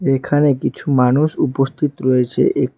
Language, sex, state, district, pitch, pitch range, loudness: Bengali, female, West Bengal, Alipurduar, 135 Hz, 130-145 Hz, -17 LUFS